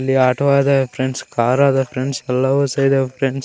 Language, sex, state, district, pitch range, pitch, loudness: Kannada, male, Karnataka, Raichur, 130-140 Hz, 135 Hz, -17 LUFS